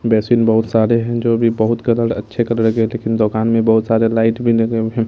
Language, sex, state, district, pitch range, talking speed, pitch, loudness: Hindi, male, Bihar, Katihar, 110-115 Hz, 260 wpm, 115 Hz, -15 LUFS